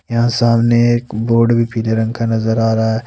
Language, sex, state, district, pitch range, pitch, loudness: Hindi, male, Jharkhand, Ranchi, 110-120 Hz, 115 Hz, -15 LUFS